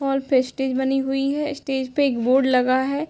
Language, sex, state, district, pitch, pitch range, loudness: Hindi, female, Bihar, Darbhanga, 270 Hz, 260-275 Hz, -21 LUFS